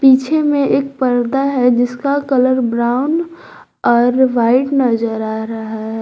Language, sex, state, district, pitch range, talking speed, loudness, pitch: Hindi, female, Jharkhand, Garhwa, 235-275 Hz, 140 wpm, -15 LUFS, 255 Hz